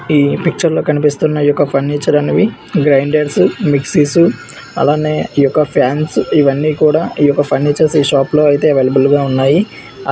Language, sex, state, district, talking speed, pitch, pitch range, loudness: Telugu, male, Andhra Pradesh, Visakhapatnam, 155 wpm, 145 Hz, 140-155 Hz, -12 LUFS